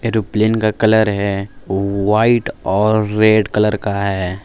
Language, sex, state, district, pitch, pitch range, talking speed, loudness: Hindi, male, Jharkhand, Palamu, 105 Hz, 100-110 Hz, 160 wpm, -16 LUFS